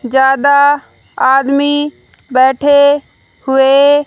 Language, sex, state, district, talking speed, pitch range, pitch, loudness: Hindi, female, Haryana, Rohtak, 75 wpm, 265-285 Hz, 280 Hz, -11 LUFS